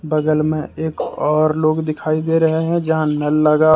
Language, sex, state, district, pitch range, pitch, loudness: Hindi, male, Jharkhand, Deoghar, 155-160 Hz, 155 Hz, -17 LUFS